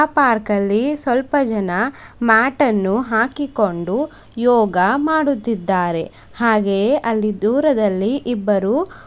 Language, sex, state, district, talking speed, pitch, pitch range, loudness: Kannada, female, Karnataka, Bidar, 90 wpm, 230 Hz, 205-275 Hz, -18 LUFS